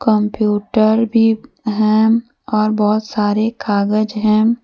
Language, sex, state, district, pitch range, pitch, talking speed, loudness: Hindi, female, Jharkhand, Deoghar, 210-225 Hz, 215 Hz, 105 wpm, -16 LUFS